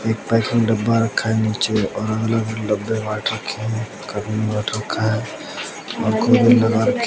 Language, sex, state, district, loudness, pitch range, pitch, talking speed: Hindi, male, Bihar, West Champaran, -20 LUFS, 110-115 Hz, 110 Hz, 120 wpm